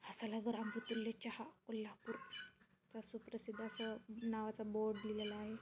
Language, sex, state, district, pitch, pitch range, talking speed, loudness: Marathi, female, Maharashtra, Sindhudurg, 220 Hz, 215-225 Hz, 115 wpm, -46 LUFS